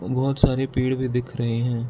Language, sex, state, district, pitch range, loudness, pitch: Hindi, male, Arunachal Pradesh, Lower Dibang Valley, 120-130 Hz, -23 LUFS, 130 Hz